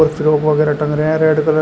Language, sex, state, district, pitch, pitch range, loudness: Hindi, male, Uttar Pradesh, Shamli, 155 Hz, 150-155 Hz, -14 LUFS